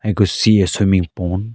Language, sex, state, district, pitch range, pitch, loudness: English, male, Arunachal Pradesh, Lower Dibang Valley, 90-105 Hz, 100 Hz, -16 LUFS